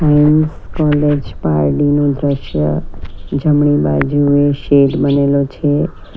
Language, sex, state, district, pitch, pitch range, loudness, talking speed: Gujarati, female, Gujarat, Valsad, 145 Hz, 110-145 Hz, -14 LUFS, 85 wpm